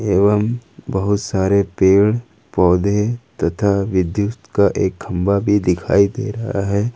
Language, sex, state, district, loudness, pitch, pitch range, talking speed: Hindi, male, Jharkhand, Ranchi, -17 LUFS, 100 Hz, 95-105 Hz, 130 wpm